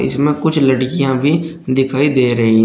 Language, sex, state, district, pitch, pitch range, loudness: Hindi, male, Uttar Pradesh, Shamli, 135 Hz, 130-150 Hz, -15 LUFS